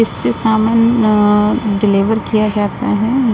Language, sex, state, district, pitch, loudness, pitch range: Hindi, female, Uttar Pradesh, Budaun, 215 Hz, -14 LUFS, 210-225 Hz